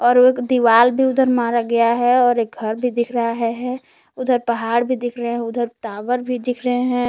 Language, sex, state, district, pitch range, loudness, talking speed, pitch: Hindi, female, Jharkhand, Palamu, 235-250 Hz, -18 LUFS, 230 wpm, 245 Hz